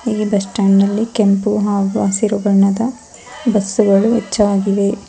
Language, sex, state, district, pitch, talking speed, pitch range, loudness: Kannada, female, Karnataka, Bangalore, 205 Hz, 130 wpm, 200-215 Hz, -15 LUFS